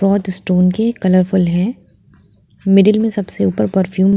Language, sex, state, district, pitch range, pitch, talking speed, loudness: Hindi, female, Uttar Pradesh, Lalitpur, 185-200 Hz, 190 Hz, 145 wpm, -15 LUFS